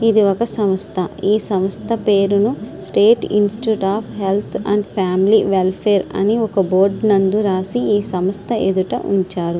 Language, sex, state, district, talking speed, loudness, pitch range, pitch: Telugu, female, Andhra Pradesh, Srikakulam, 135 wpm, -17 LUFS, 190-215 Hz, 200 Hz